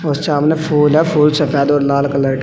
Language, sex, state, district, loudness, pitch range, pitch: Hindi, male, Uttar Pradesh, Saharanpur, -14 LUFS, 140-150 Hz, 150 Hz